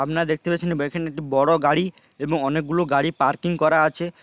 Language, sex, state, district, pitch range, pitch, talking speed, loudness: Bengali, male, West Bengal, Paschim Medinipur, 145-170 Hz, 160 Hz, 215 wpm, -21 LUFS